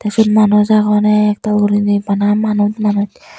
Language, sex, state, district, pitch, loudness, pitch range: Chakma, female, Tripura, Unakoti, 210 Hz, -13 LUFS, 205-210 Hz